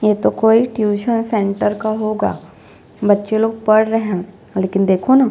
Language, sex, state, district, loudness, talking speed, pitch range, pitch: Hindi, female, Chhattisgarh, Jashpur, -16 LUFS, 180 wpm, 205-225 Hz, 215 Hz